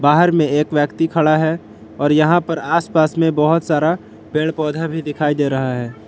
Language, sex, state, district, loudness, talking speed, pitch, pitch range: Hindi, male, Jharkhand, Palamu, -17 LUFS, 195 wpm, 155 Hz, 150-165 Hz